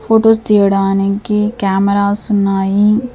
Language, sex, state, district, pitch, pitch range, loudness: Telugu, female, Andhra Pradesh, Sri Satya Sai, 205 Hz, 195-215 Hz, -13 LUFS